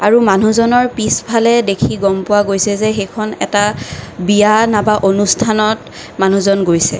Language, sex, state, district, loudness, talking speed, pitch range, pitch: Assamese, female, Assam, Kamrup Metropolitan, -13 LUFS, 130 wpm, 195-220 Hz, 210 Hz